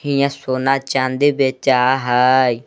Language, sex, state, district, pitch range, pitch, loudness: Magahi, male, Jharkhand, Palamu, 130-140 Hz, 130 Hz, -16 LUFS